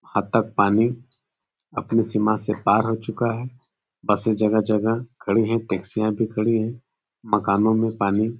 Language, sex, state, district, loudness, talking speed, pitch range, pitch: Hindi, male, Uttar Pradesh, Deoria, -22 LUFS, 155 wpm, 105-115 Hz, 110 Hz